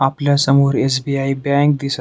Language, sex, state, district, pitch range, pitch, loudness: Marathi, male, Maharashtra, Pune, 135-140 Hz, 140 Hz, -16 LUFS